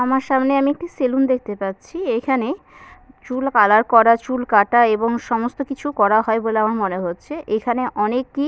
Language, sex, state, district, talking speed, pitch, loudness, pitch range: Bengali, female, West Bengal, Purulia, 170 wpm, 240 Hz, -18 LUFS, 215-270 Hz